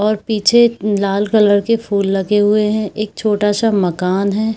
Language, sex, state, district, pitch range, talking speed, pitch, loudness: Hindi, female, Bihar, Kishanganj, 200-215 Hz, 185 wpm, 210 Hz, -15 LUFS